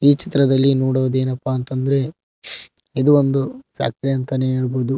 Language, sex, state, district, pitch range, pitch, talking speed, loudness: Kannada, male, Karnataka, Koppal, 130-140 Hz, 135 Hz, 120 wpm, -19 LUFS